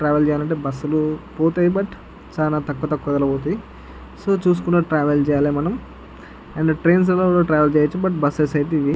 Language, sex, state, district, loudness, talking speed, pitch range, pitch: Telugu, male, Andhra Pradesh, Chittoor, -19 LUFS, 165 wpm, 145-175 Hz, 155 Hz